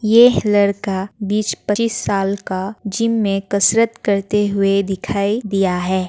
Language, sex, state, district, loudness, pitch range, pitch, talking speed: Hindi, female, Bihar, Madhepura, -17 LUFS, 195-215 Hz, 200 Hz, 130 wpm